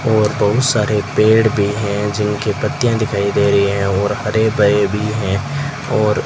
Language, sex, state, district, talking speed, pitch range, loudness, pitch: Hindi, male, Rajasthan, Bikaner, 180 wpm, 105-110 Hz, -16 LUFS, 105 Hz